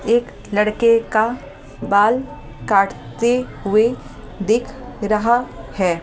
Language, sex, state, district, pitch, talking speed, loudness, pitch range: Hindi, female, Delhi, New Delhi, 220 Hz, 90 wpm, -18 LUFS, 200-235 Hz